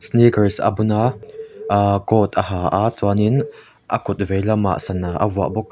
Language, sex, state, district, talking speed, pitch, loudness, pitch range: Mizo, male, Mizoram, Aizawl, 200 wpm, 105 Hz, -18 LUFS, 100-115 Hz